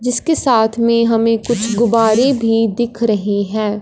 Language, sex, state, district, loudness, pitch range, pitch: Hindi, female, Punjab, Fazilka, -15 LUFS, 220-235 Hz, 230 Hz